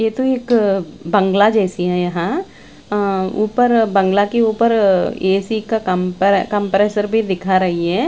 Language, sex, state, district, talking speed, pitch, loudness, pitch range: Hindi, female, Chandigarh, Chandigarh, 150 wpm, 200 Hz, -16 LUFS, 190-220 Hz